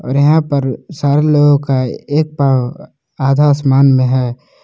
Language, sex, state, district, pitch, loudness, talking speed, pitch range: Hindi, male, Jharkhand, Palamu, 140 Hz, -13 LUFS, 155 wpm, 130-145 Hz